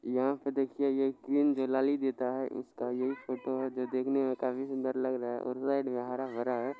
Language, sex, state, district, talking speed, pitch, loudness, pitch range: Maithili, male, Bihar, Supaul, 205 wpm, 130 Hz, -33 LUFS, 125-135 Hz